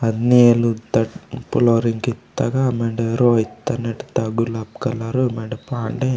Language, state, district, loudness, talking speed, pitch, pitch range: Gondi, Chhattisgarh, Sukma, -19 LUFS, 135 wpm, 115 Hz, 115-125 Hz